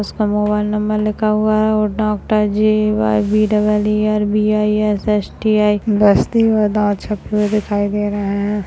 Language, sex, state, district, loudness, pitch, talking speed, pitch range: Hindi, male, Uttarakhand, Tehri Garhwal, -16 LUFS, 210 Hz, 200 wpm, 210-215 Hz